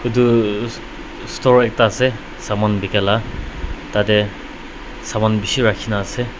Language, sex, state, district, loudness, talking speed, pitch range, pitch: Nagamese, male, Nagaland, Dimapur, -17 LUFS, 105 wpm, 105-120 Hz, 110 Hz